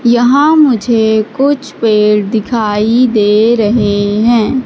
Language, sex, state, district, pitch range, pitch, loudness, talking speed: Hindi, female, Madhya Pradesh, Katni, 215-250 Hz, 225 Hz, -10 LUFS, 105 wpm